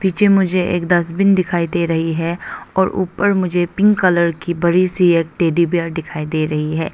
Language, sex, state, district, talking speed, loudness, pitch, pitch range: Hindi, female, Arunachal Pradesh, Longding, 190 wpm, -16 LUFS, 175 Hz, 165-185 Hz